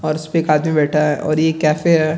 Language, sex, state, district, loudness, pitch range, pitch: Hindi, male, Bihar, Gaya, -16 LUFS, 150-160 Hz, 155 Hz